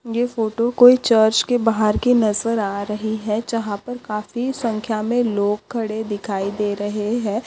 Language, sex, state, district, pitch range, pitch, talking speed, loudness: Hindi, female, Maharashtra, Nagpur, 210-235 Hz, 220 Hz, 175 wpm, -20 LUFS